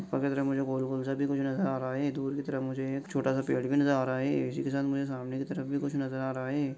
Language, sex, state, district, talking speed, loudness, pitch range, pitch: Hindi, male, Bihar, Saran, 320 wpm, -31 LUFS, 130-140 Hz, 135 Hz